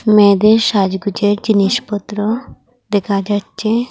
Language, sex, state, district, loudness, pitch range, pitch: Bengali, female, Assam, Hailakandi, -15 LUFS, 200-220 Hz, 210 Hz